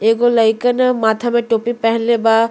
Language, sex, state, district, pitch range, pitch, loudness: Bhojpuri, female, Uttar Pradesh, Deoria, 225-240 Hz, 230 Hz, -15 LUFS